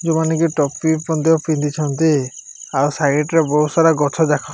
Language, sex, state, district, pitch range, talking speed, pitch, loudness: Odia, male, Odisha, Malkangiri, 145-160 Hz, 185 wpm, 155 Hz, -17 LUFS